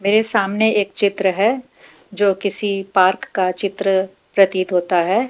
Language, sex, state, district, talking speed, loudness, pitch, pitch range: Hindi, female, Haryana, Jhajjar, 145 wpm, -18 LUFS, 200 Hz, 190-205 Hz